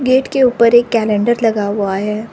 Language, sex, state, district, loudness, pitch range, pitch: Hindi, female, Arunachal Pradesh, Lower Dibang Valley, -14 LUFS, 210-240 Hz, 230 Hz